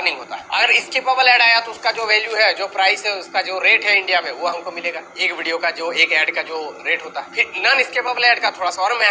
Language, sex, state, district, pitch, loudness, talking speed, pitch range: Hindi, male, Maharashtra, Gondia, 195 Hz, -16 LUFS, 295 wpm, 175-225 Hz